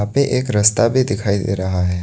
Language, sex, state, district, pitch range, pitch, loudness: Hindi, male, Assam, Kamrup Metropolitan, 95-130 Hz, 105 Hz, -17 LUFS